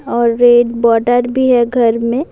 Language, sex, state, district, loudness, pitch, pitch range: Urdu, female, Bihar, Saharsa, -12 LUFS, 240 Hz, 235-245 Hz